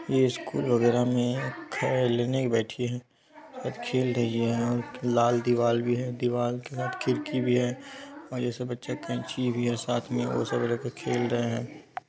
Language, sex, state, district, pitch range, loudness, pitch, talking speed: Maithili, male, Bihar, Supaul, 120-125 Hz, -28 LUFS, 120 Hz, 180 wpm